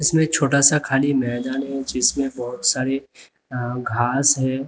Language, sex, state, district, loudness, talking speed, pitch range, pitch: Hindi, male, Uttar Pradesh, Lalitpur, -20 LUFS, 140 wpm, 125-140 Hz, 135 Hz